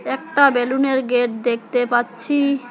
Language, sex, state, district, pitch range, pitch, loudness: Bengali, female, West Bengal, Alipurduar, 240-275 Hz, 250 Hz, -18 LUFS